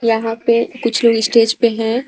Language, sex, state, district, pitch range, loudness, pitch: Hindi, female, Jharkhand, Garhwa, 225-235 Hz, -15 LUFS, 230 Hz